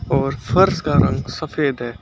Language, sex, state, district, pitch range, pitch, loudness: Hindi, male, Uttar Pradesh, Lucknow, 125-155 Hz, 135 Hz, -19 LUFS